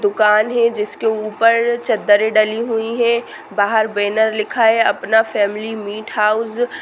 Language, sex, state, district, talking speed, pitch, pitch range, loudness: Hindi, female, Bihar, Sitamarhi, 140 wpm, 220 Hz, 210-230 Hz, -16 LUFS